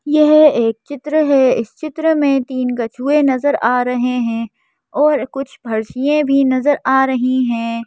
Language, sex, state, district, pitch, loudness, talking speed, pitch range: Hindi, female, Madhya Pradesh, Bhopal, 265 Hz, -15 LUFS, 160 wpm, 245-290 Hz